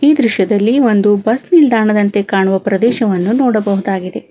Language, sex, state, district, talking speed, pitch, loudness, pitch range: Kannada, female, Karnataka, Bangalore, 110 wpm, 215 Hz, -13 LUFS, 200-240 Hz